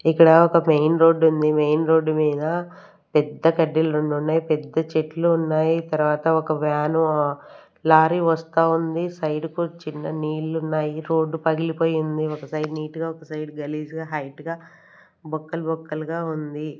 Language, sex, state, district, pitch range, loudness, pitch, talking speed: Telugu, female, Andhra Pradesh, Sri Satya Sai, 155-165 Hz, -21 LUFS, 160 Hz, 145 wpm